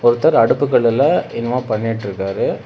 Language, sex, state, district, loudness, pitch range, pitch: Tamil, male, Tamil Nadu, Namakkal, -16 LUFS, 100-125 Hz, 115 Hz